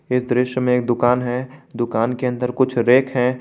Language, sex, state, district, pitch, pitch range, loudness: Hindi, male, Jharkhand, Garhwa, 125 Hz, 120-130 Hz, -19 LUFS